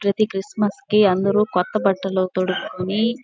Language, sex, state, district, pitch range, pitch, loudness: Telugu, female, Andhra Pradesh, Chittoor, 185-215 Hz, 200 Hz, -20 LUFS